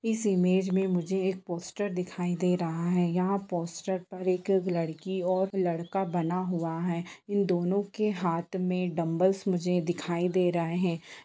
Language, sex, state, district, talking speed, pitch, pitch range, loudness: Hindi, female, Bihar, Purnia, 175 wpm, 180 Hz, 175-190 Hz, -29 LUFS